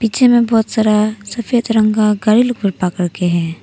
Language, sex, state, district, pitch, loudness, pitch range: Hindi, female, Arunachal Pradesh, Papum Pare, 215 Hz, -14 LUFS, 195-230 Hz